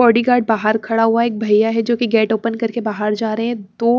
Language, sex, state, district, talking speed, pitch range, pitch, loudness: Hindi, female, Haryana, Charkhi Dadri, 285 wpm, 220-235 Hz, 225 Hz, -17 LUFS